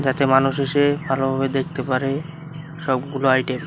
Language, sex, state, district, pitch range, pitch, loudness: Bengali, male, West Bengal, Cooch Behar, 135-145 Hz, 135 Hz, -21 LUFS